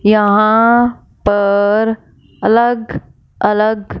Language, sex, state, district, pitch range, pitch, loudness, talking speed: Hindi, female, Punjab, Fazilka, 210-230 Hz, 215 Hz, -13 LUFS, 60 wpm